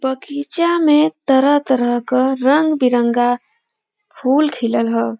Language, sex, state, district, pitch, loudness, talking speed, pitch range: Bhojpuri, female, Uttar Pradesh, Varanasi, 270 Hz, -16 LUFS, 115 wpm, 245-310 Hz